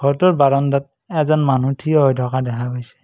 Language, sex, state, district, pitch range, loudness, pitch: Assamese, male, Assam, Kamrup Metropolitan, 130-145 Hz, -17 LUFS, 140 Hz